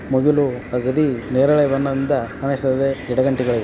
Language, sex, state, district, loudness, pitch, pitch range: Kannada, male, Karnataka, Belgaum, -19 LUFS, 135 Hz, 125-140 Hz